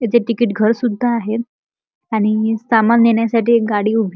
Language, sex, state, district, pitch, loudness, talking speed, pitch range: Marathi, male, Maharashtra, Chandrapur, 230 Hz, -16 LUFS, 160 wpm, 220-235 Hz